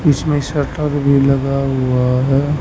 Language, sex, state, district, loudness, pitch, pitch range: Hindi, male, Haryana, Rohtak, -16 LUFS, 140 Hz, 135-145 Hz